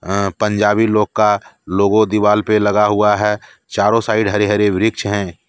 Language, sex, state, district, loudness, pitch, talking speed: Hindi, male, Jharkhand, Deoghar, -15 LUFS, 105 Hz, 175 wpm